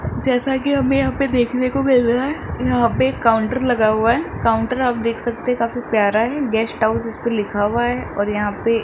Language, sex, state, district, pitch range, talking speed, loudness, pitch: Hindi, male, Rajasthan, Jaipur, 225-255 Hz, 245 wpm, -18 LUFS, 240 Hz